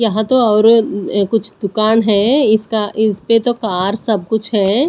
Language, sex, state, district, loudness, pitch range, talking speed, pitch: Hindi, female, Punjab, Pathankot, -14 LUFS, 205-225 Hz, 170 wpm, 220 Hz